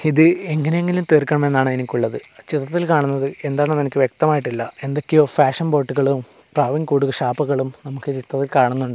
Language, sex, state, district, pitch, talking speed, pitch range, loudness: Malayalam, male, Kerala, Kasaragod, 140 Hz, 100 wpm, 135-155 Hz, -19 LUFS